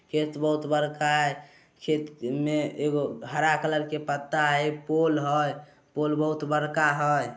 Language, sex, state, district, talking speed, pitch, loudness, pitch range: Hindi, male, Bihar, Samastipur, 145 wpm, 150 Hz, -26 LUFS, 145-155 Hz